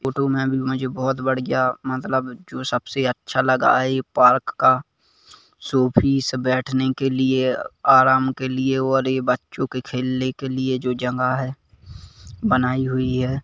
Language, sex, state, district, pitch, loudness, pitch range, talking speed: Hindi, male, Chhattisgarh, Kabirdham, 130 Hz, -20 LUFS, 125-130 Hz, 150 wpm